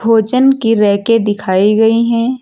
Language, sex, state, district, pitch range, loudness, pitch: Hindi, female, Uttar Pradesh, Lucknow, 205-230 Hz, -12 LUFS, 225 Hz